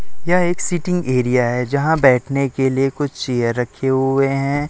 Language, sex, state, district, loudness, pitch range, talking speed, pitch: Hindi, male, Chhattisgarh, Raipur, -18 LUFS, 125-145 Hz, 180 wpm, 135 Hz